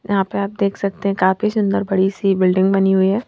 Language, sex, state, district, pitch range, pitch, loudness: Hindi, female, Madhya Pradesh, Bhopal, 190-200 Hz, 195 Hz, -17 LUFS